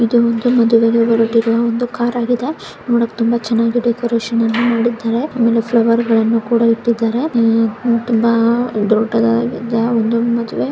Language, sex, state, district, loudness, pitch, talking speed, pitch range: Kannada, female, Karnataka, Chamarajanagar, -15 LUFS, 230 Hz, 110 wpm, 230-235 Hz